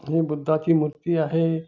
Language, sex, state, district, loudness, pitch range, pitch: Marathi, male, Maharashtra, Nagpur, -23 LUFS, 155-165 Hz, 160 Hz